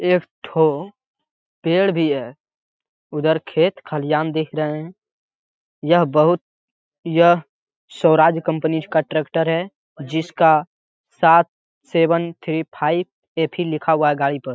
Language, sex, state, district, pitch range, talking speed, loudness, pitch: Hindi, male, Bihar, Jamui, 155-175 Hz, 125 wpm, -19 LUFS, 160 Hz